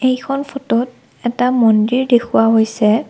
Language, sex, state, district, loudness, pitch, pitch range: Assamese, female, Assam, Kamrup Metropolitan, -15 LUFS, 240 Hz, 225-255 Hz